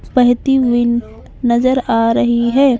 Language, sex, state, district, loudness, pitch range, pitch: Hindi, female, Maharashtra, Mumbai Suburban, -14 LUFS, 235-260 Hz, 245 Hz